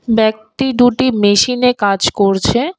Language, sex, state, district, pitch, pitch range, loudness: Bengali, female, West Bengal, Alipurduar, 235 Hz, 205-250 Hz, -13 LUFS